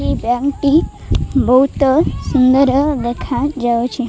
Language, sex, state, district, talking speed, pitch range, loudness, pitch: Odia, female, Odisha, Malkangiri, 90 wpm, 245-285 Hz, -15 LUFS, 270 Hz